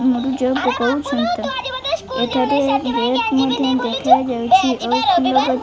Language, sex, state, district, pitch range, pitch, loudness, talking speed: Odia, female, Odisha, Malkangiri, 245-280 Hz, 255 Hz, -17 LUFS, 75 wpm